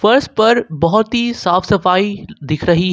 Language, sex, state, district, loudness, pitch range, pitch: Hindi, male, Jharkhand, Ranchi, -15 LUFS, 175-220 Hz, 200 Hz